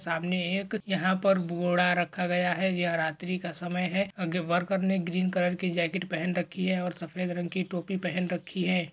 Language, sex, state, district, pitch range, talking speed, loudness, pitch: Hindi, male, Bihar, Lakhisarai, 175-185 Hz, 210 wpm, -29 LUFS, 180 Hz